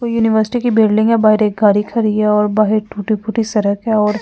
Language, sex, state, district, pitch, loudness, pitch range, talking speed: Hindi, female, Delhi, New Delhi, 215 Hz, -14 LUFS, 210-225 Hz, 230 wpm